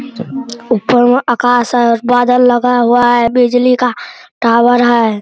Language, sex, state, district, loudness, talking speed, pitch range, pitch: Maithili, male, Bihar, Araria, -11 LUFS, 150 wpm, 240-250 Hz, 245 Hz